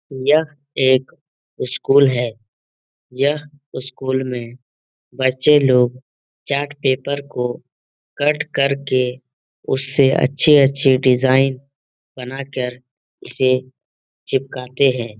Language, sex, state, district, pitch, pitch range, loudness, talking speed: Hindi, male, Uttar Pradesh, Etah, 130 Hz, 125-140 Hz, -18 LUFS, 85 wpm